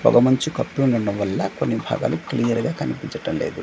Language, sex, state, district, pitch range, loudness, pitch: Telugu, male, Andhra Pradesh, Manyam, 100-130 Hz, -22 LUFS, 120 Hz